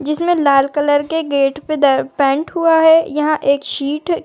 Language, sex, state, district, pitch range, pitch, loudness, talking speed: Hindi, female, Uttar Pradesh, Muzaffarnagar, 280-320 Hz, 295 Hz, -15 LUFS, 185 wpm